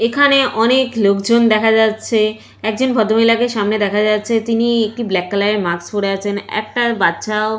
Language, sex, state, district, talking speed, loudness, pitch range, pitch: Bengali, female, West Bengal, Purulia, 160 wpm, -15 LUFS, 205-230 Hz, 220 Hz